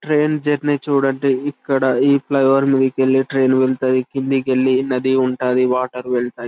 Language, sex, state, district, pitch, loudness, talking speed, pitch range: Telugu, male, Telangana, Karimnagar, 135 Hz, -17 LUFS, 140 wpm, 130-140 Hz